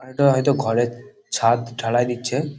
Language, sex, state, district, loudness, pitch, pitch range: Bengali, male, West Bengal, Kolkata, -21 LUFS, 125 Hz, 120-140 Hz